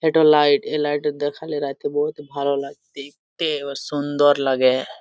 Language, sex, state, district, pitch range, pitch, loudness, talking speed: Bengali, male, Jharkhand, Jamtara, 140-150 Hz, 145 Hz, -20 LUFS, 180 wpm